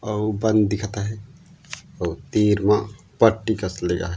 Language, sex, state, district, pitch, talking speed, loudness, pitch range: Chhattisgarhi, male, Chhattisgarh, Raigarh, 105 Hz, 160 wpm, -22 LUFS, 105-110 Hz